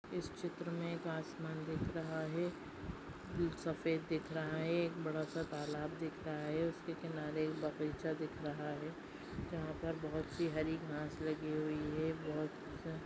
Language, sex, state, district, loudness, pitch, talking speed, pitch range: Hindi, female, Maharashtra, Sindhudurg, -42 LUFS, 160 Hz, 165 wpm, 155-165 Hz